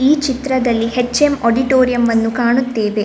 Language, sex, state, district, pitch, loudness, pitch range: Kannada, female, Karnataka, Dakshina Kannada, 245 Hz, -15 LUFS, 230-260 Hz